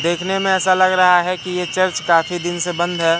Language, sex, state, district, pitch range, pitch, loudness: Hindi, male, Madhya Pradesh, Katni, 175-185 Hz, 180 Hz, -17 LUFS